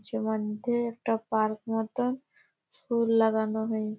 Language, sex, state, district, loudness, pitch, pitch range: Bengali, female, West Bengal, Malda, -29 LUFS, 225 Hz, 220-235 Hz